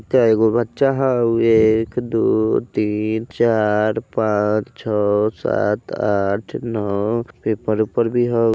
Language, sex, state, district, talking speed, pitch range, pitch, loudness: Bajjika, male, Bihar, Vaishali, 125 wpm, 105-115 Hz, 110 Hz, -19 LUFS